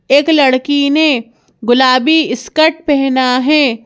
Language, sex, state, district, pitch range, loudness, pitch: Hindi, female, Madhya Pradesh, Bhopal, 255-305 Hz, -11 LUFS, 275 Hz